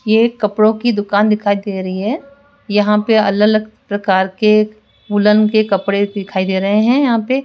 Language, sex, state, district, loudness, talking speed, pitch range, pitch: Hindi, female, Rajasthan, Jaipur, -15 LUFS, 200 wpm, 200-220 Hz, 210 Hz